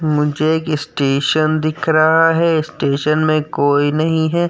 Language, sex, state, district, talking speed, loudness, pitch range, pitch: Hindi, male, Uttar Pradesh, Jyotiba Phule Nagar, 145 wpm, -15 LUFS, 150-160 Hz, 155 Hz